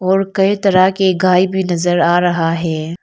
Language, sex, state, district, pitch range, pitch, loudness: Hindi, female, Arunachal Pradesh, Lower Dibang Valley, 175-190 Hz, 185 Hz, -14 LUFS